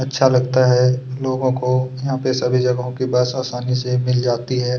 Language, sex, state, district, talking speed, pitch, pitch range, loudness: Hindi, male, Chhattisgarh, Kabirdham, 200 wpm, 125 Hz, 125-130 Hz, -18 LUFS